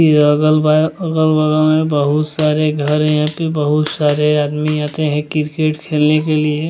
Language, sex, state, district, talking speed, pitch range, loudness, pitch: Hindi, male, Bihar, West Champaran, 170 wpm, 150-155 Hz, -15 LUFS, 155 Hz